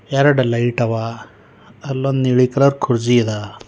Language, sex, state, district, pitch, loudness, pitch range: Kannada, male, Karnataka, Bidar, 120 Hz, -17 LUFS, 115-135 Hz